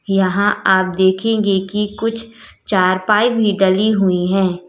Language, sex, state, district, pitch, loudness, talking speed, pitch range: Hindi, female, Uttar Pradesh, Lalitpur, 195 Hz, -16 LUFS, 130 wpm, 185-215 Hz